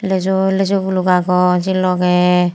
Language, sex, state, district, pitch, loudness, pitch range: Chakma, female, Tripura, Unakoti, 185 Hz, -15 LUFS, 180-190 Hz